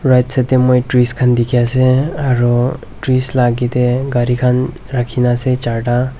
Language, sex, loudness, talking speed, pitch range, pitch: Nagamese, male, -14 LUFS, 175 wpm, 120-130 Hz, 125 Hz